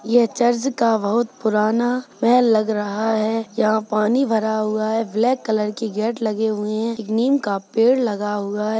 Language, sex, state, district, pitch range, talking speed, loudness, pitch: Hindi, female, Chhattisgarh, Kabirdham, 215-235 Hz, 190 wpm, -20 LUFS, 220 Hz